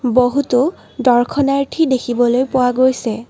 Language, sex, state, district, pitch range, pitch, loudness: Assamese, female, Assam, Kamrup Metropolitan, 245-270 Hz, 255 Hz, -15 LUFS